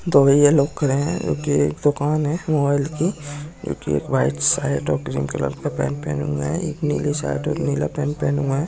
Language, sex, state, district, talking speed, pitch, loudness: Angika, male, Bihar, Supaul, 235 wpm, 135 Hz, -21 LUFS